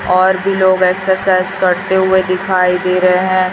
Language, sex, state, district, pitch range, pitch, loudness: Hindi, female, Chhattisgarh, Raipur, 185-190 Hz, 185 Hz, -13 LUFS